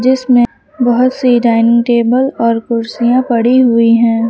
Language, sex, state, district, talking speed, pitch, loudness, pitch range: Hindi, female, Uttar Pradesh, Lucknow, 140 wpm, 240 Hz, -11 LUFS, 230-250 Hz